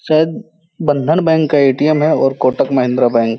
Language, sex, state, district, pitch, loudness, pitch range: Hindi, male, Uttar Pradesh, Hamirpur, 145 Hz, -14 LUFS, 130-160 Hz